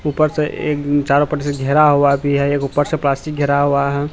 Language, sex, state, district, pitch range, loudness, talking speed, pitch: Hindi, male, Bihar, Katihar, 140-150 Hz, -16 LUFS, 245 wpm, 145 Hz